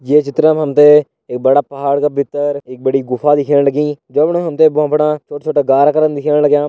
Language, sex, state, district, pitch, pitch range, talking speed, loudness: Hindi, male, Uttarakhand, Tehri Garhwal, 145 Hz, 140-150 Hz, 235 wpm, -13 LUFS